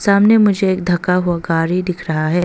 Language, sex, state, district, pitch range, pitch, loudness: Hindi, female, Arunachal Pradesh, Longding, 175-195 Hz, 180 Hz, -15 LUFS